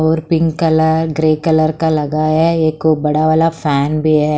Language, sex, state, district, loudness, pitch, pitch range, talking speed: Hindi, female, Haryana, Charkhi Dadri, -14 LUFS, 155 Hz, 155-160 Hz, 190 wpm